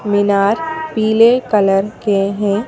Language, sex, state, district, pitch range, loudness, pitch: Hindi, female, Madhya Pradesh, Bhopal, 200-230 Hz, -14 LUFS, 210 Hz